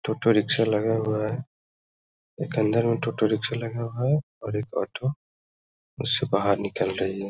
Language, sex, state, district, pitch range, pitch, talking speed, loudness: Hindi, male, Uttar Pradesh, Hamirpur, 110-120 Hz, 115 Hz, 180 wpm, -26 LUFS